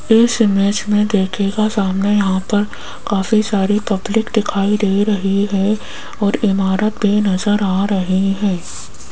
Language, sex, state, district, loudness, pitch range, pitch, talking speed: Hindi, female, Rajasthan, Jaipur, -16 LUFS, 195-210 Hz, 205 Hz, 140 wpm